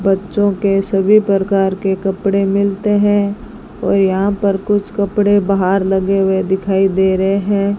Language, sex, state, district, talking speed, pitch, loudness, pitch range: Hindi, female, Rajasthan, Bikaner, 155 wpm, 195 Hz, -15 LUFS, 195-205 Hz